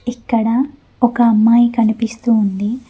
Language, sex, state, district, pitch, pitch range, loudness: Telugu, female, Telangana, Mahabubabad, 235 Hz, 225-245 Hz, -15 LUFS